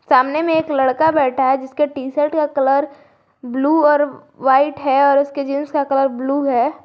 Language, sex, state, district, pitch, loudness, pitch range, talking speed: Hindi, female, Jharkhand, Garhwa, 280 Hz, -17 LUFS, 270-295 Hz, 190 wpm